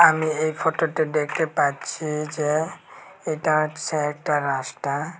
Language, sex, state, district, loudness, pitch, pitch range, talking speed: Bengali, male, Tripura, West Tripura, -24 LUFS, 155 Hz, 150-160 Hz, 125 wpm